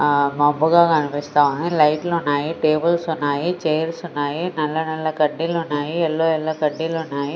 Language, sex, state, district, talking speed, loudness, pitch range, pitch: Telugu, female, Andhra Pradesh, Sri Satya Sai, 145 wpm, -20 LUFS, 145-165 Hz, 155 Hz